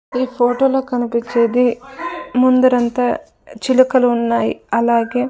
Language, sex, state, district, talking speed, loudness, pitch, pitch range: Telugu, female, Andhra Pradesh, Sri Satya Sai, 115 wpm, -16 LUFS, 250 Hz, 235-255 Hz